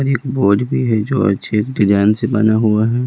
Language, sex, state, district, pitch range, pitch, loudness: Hindi, male, Delhi, New Delhi, 105-125 Hz, 110 Hz, -15 LUFS